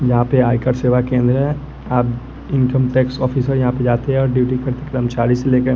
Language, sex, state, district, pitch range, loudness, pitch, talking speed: Hindi, male, Bihar, West Champaran, 125-130 Hz, -17 LUFS, 130 Hz, 220 wpm